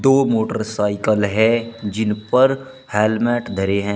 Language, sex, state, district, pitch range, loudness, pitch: Hindi, male, Uttar Pradesh, Shamli, 105-120 Hz, -19 LUFS, 110 Hz